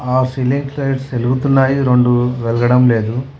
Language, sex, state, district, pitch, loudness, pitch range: Telugu, male, Telangana, Hyderabad, 125 Hz, -15 LUFS, 125-135 Hz